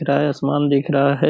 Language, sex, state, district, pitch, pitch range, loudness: Hindi, male, Bihar, Purnia, 140 Hz, 140-145 Hz, -18 LUFS